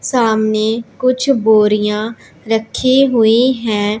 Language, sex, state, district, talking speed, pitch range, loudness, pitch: Hindi, female, Punjab, Pathankot, 90 wpm, 215-255 Hz, -14 LUFS, 225 Hz